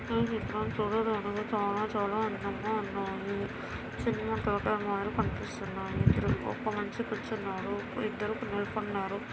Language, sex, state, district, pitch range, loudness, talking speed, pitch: Telugu, female, Andhra Pradesh, Anantapur, 200-220 Hz, -33 LUFS, 95 wpm, 210 Hz